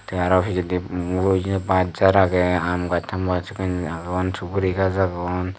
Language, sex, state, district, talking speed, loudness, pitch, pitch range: Chakma, male, Tripura, Dhalai, 160 wpm, -21 LUFS, 90 Hz, 90-95 Hz